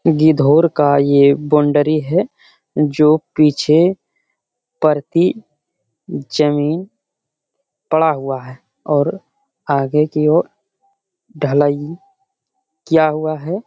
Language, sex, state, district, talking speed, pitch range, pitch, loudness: Hindi, male, Bihar, Jamui, 90 wpm, 145-185 Hz, 155 Hz, -15 LUFS